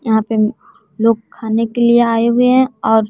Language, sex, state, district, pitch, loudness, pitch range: Hindi, female, Bihar, West Champaran, 230 Hz, -14 LUFS, 220-240 Hz